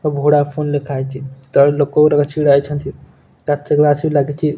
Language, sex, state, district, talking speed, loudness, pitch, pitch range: Odia, male, Odisha, Nuapada, 155 wpm, -15 LUFS, 145 Hz, 140-150 Hz